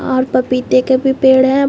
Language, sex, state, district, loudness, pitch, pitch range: Hindi, female, Chhattisgarh, Bastar, -13 LUFS, 260 Hz, 255-265 Hz